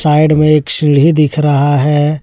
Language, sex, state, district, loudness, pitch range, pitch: Hindi, male, Jharkhand, Deoghar, -10 LUFS, 145-155 Hz, 150 Hz